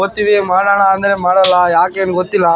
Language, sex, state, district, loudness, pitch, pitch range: Kannada, male, Karnataka, Raichur, -12 LUFS, 190 Hz, 180-200 Hz